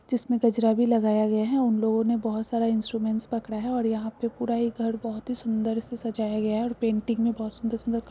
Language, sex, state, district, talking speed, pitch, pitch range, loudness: Hindi, female, Bihar, Supaul, 230 wpm, 230 Hz, 220-235 Hz, -26 LUFS